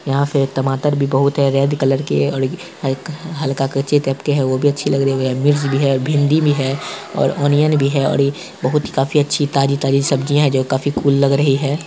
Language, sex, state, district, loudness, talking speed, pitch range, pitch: Hindi, male, Bihar, Saharsa, -17 LUFS, 240 wpm, 135-145 Hz, 140 Hz